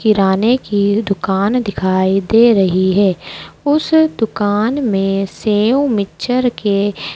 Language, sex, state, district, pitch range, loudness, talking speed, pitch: Hindi, female, Madhya Pradesh, Dhar, 195-240 Hz, -15 LUFS, 110 wpm, 205 Hz